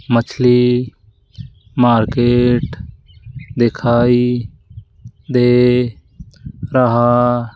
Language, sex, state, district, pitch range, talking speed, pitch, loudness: Hindi, male, Rajasthan, Jaipur, 110-125 Hz, 50 wpm, 120 Hz, -14 LUFS